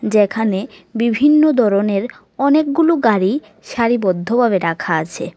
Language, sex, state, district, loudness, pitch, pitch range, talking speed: Bengali, female, Tripura, West Tripura, -16 LUFS, 220 Hz, 195-250 Hz, 90 wpm